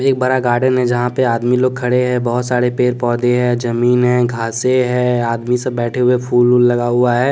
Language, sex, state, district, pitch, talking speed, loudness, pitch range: Hindi, male, Bihar, West Champaran, 125 Hz, 230 wpm, -15 LUFS, 120-125 Hz